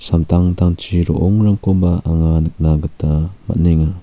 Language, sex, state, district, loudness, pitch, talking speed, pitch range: Garo, male, Meghalaya, South Garo Hills, -15 LUFS, 85 Hz, 90 wpm, 80-90 Hz